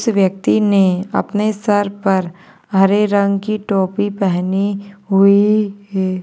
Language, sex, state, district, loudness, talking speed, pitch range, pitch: Hindi, female, Maharashtra, Nagpur, -16 LUFS, 115 wpm, 195-205 Hz, 200 Hz